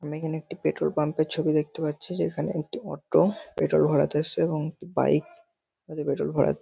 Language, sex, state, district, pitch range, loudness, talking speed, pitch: Bengali, male, West Bengal, North 24 Parganas, 150-160 Hz, -26 LUFS, 190 wpm, 155 Hz